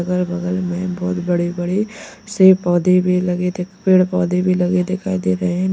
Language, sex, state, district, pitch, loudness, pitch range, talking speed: Hindi, male, Uttar Pradesh, Lalitpur, 180 Hz, -17 LUFS, 175-185 Hz, 200 wpm